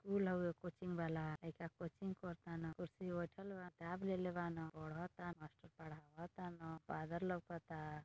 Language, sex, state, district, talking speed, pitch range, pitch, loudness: Bhojpuri, female, Uttar Pradesh, Deoria, 170 wpm, 160-180 Hz, 170 Hz, -47 LUFS